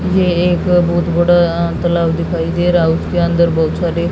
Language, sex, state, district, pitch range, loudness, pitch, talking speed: Hindi, female, Haryana, Jhajjar, 170-175 Hz, -14 LUFS, 170 Hz, 205 wpm